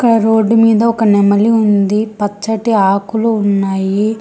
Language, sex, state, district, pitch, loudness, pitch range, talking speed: Telugu, female, Telangana, Hyderabad, 215 Hz, -12 LUFS, 200-225 Hz, 115 wpm